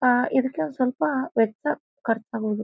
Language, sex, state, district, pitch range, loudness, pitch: Kannada, female, Karnataka, Bijapur, 225-270 Hz, -25 LUFS, 250 Hz